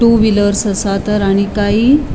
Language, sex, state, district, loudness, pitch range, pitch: Konkani, female, Goa, North and South Goa, -13 LUFS, 200-220 Hz, 205 Hz